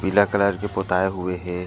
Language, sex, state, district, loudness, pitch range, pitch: Chhattisgarhi, male, Chhattisgarh, Korba, -22 LUFS, 90-100 Hz, 95 Hz